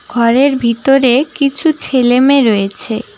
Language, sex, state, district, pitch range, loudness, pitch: Bengali, female, West Bengal, Cooch Behar, 235-275 Hz, -12 LUFS, 255 Hz